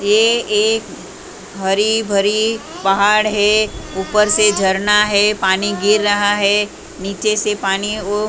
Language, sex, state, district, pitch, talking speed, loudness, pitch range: Hindi, female, Maharashtra, Mumbai Suburban, 210 Hz, 130 wpm, -15 LUFS, 200-215 Hz